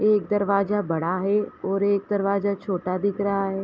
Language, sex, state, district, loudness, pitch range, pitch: Hindi, female, Uttar Pradesh, Hamirpur, -24 LUFS, 195-205 Hz, 200 Hz